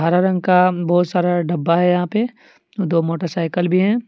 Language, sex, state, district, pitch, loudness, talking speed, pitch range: Hindi, male, Jharkhand, Deoghar, 180 Hz, -18 LUFS, 190 wpm, 170-185 Hz